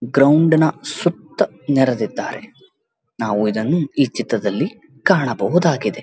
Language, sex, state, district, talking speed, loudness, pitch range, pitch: Kannada, male, Karnataka, Dharwad, 80 wpm, -18 LUFS, 120-160 Hz, 140 Hz